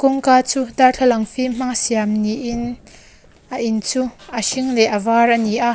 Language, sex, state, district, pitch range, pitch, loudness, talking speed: Mizo, female, Mizoram, Aizawl, 225-255 Hz, 240 Hz, -17 LUFS, 175 wpm